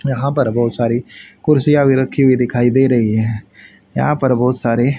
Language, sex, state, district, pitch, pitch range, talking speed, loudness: Hindi, male, Haryana, Charkhi Dadri, 125 Hz, 115-135 Hz, 190 wpm, -15 LUFS